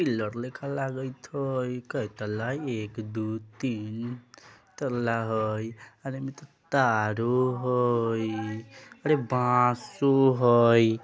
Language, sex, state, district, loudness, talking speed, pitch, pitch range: Bajjika, male, Bihar, Vaishali, -27 LUFS, 100 wpm, 120 Hz, 110-130 Hz